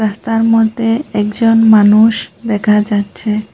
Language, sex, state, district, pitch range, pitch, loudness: Bengali, female, Assam, Hailakandi, 210-225 Hz, 220 Hz, -12 LUFS